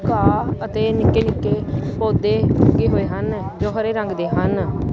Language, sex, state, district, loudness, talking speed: Punjabi, female, Punjab, Kapurthala, -19 LUFS, 160 wpm